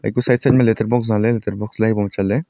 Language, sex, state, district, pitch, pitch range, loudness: Wancho, male, Arunachal Pradesh, Longding, 110 Hz, 105-125 Hz, -18 LUFS